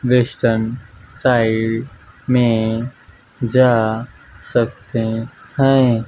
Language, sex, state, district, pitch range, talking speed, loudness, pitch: Hindi, male, Maharashtra, Mumbai Suburban, 110-125 Hz, 60 wpm, -18 LUFS, 115 Hz